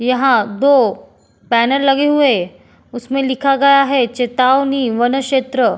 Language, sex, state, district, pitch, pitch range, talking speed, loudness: Hindi, female, Uttarakhand, Tehri Garhwal, 260 Hz, 245-275 Hz, 135 wpm, -14 LUFS